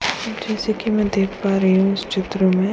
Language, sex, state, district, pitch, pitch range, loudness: Hindi, female, Bihar, Kishanganj, 195 Hz, 190-210 Hz, -20 LUFS